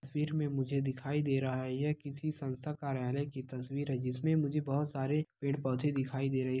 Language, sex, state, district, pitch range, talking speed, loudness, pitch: Hindi, male, Bihar, Begusarai, 130-150 Hz, 210 wpm, -35 LUFS, 140 Hz